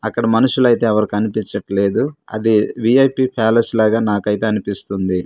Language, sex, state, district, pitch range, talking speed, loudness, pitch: Telugu, male, Andhra Pradesh, Manyam, 105-120 Hz, 125 wpm, -16 LUFS, 110 Hz